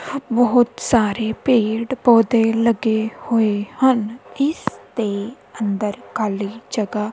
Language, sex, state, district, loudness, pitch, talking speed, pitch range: Punjabi, female, Punjab, Kapurthala, -19 LUFS, 225 Hz, 100 wpm, 215-245 Hz